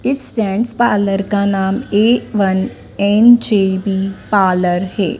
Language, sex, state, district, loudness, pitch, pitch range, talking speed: Hindi, female, Madhya Pradesh, Dhar, -14 LUFS, 200 Hz, 195-225 Hz, 115 wpm